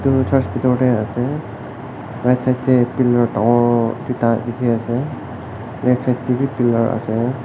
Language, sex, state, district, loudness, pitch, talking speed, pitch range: Nagamese, male, Nagaland, Kohima, -18 LUFS, 125 Hz, 145 wpm, 115-130 Hz